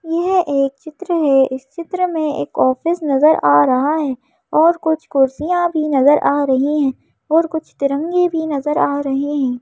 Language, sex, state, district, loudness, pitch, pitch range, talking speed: Hindi, female, Madhya Pradesh, Bhopal, -16 LUFS, 300 Hz, 275-330 Hz, 180 wpm